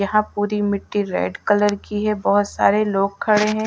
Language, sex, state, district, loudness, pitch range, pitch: Hindi, female, Odisha, Malkangiri, -20 LUFS, 200-210 Hz, 205 Hz